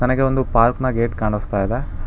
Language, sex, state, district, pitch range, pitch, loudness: Kannada, male, Karnataka, Bangalore, 105-130 Hz, 115 Hz, -19 LUFS